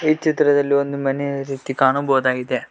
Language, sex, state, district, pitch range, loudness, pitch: Kannada, male, Karnataka, Koppal, 135-145 Hz, -19 LUFS, 140 Hz